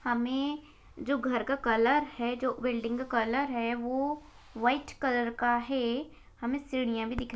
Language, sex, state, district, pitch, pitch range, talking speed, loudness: Hindi, female, Bihar, Begusarai, 250 Hz, 240-275 Hz, 165 wpm, -31 LUFS